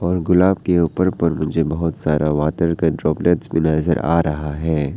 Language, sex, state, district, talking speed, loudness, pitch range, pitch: Hindi, male, Arunachal Pradesh, Papum Pare, 195 wpm, -18 LUFS, 75-85 Hz, 80 Hz